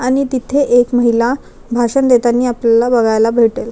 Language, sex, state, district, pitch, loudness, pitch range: Marathi, female, Maharashtra, Chandrapur, 245 Hz, -13 LUFS, 235-255 Hz